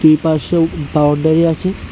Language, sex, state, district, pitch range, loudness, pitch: Bengali, male, Tripura, West Tripura, 155-165 Hz, -14 LUFS, 160 Hz